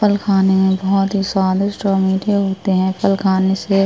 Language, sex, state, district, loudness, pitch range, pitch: Hindi, female, Uttar Pradesh, Budaun, -16 LUFS, 190-200 Hz, 195 Hz